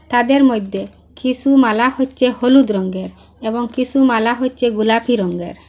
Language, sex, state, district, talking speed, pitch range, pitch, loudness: Bengali, female, Assam, Hailakandi, 135 wpm, 220-255 Hz, 245 Hz, -15 LUFS